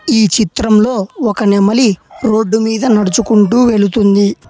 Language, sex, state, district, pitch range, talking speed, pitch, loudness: Telugu, male, Telangana, Hyderabad, 205-235 Hz, 105 wpm, 220 Hz, -12 LUFS